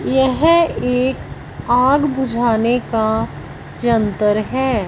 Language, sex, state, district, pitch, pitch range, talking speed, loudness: Hindi, female, Punjab, Fazilka, 240 Hz, 215-265 Hz, 85 wpm, -17 LUFS